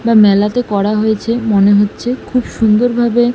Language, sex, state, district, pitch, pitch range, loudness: Bengali, female, West Bengal, Malda, 220 Hz, 205-240 Hz, -13 LUFS